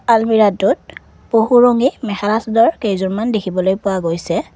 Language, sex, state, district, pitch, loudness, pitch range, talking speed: Assamese, female, Assam, Kamrup Metropolitan, 215 Hz, -15 LUFS, 190-230 Hz, 120 wpm